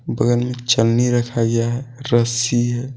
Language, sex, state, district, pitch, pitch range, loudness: Hindi, male, Jharkhand, Deoghar, 120 Hz, 120-125 Hz, -18 LUFS